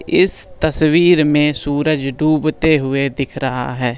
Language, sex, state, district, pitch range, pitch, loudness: Hindi, male, Bihar, Bhagalpur, 135-155 Hz, 150 Hz, -16 LUFS